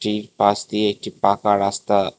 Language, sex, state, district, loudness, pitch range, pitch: Bengali, male, Tripura, West Tripura, -20 LUFS, 100-105 Hz, 100 Hz